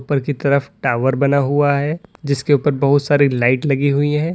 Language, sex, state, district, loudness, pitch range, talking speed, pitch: Hindi, male, Uttar Pradesh, Lalitpur, -17 LUFS, 140-145 Hz, 205 wpm, 140 Hz